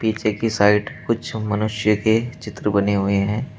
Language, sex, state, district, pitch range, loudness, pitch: Hindi, male, Uttar Pradesh, Shamli, 105-110 Hz, -20 LUFS, 105 Hz